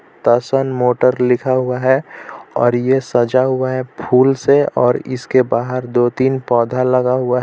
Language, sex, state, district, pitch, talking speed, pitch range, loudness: Hindi, male, Jharkhand, Palamu, 125 Hz, 160 wpm, 125-130 Hz, -15 LUFS